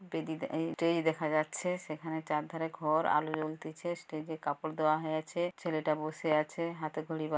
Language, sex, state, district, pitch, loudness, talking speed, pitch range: Bengali, female, West Bengal, Jhargram, 155 Hz, -34 LUFS, 165 wpm, 155-165 Hz